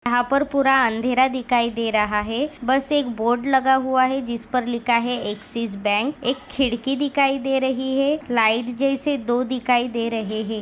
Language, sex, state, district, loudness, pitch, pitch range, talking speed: Hindi, female, Maharashtra, Dhule, -21 LUFS, 250 Hz, 235-270 Hz, 180 wpm